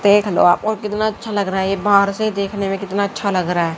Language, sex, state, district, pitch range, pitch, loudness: Hindi, female, Haryana, Rohtak, 195-210 Hz, 200 Hz, -18 LUFS